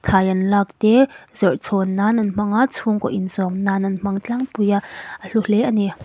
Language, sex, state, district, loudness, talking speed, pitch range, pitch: Mizo, female, Mizoram, Aizawl, -19 LUFS, 230 wpm, 195-220 Hz, 200 Hz